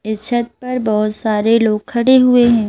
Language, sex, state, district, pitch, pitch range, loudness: Hindi, female, Madhya Pradesh, Bhopal, 230 Hz, 215-245 Hz, -14 LUFS